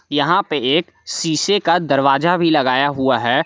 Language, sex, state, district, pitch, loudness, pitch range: Hindi, male, Jharkhand, Palamu, 155 Hz, -16 LUFS, 140-170 Hz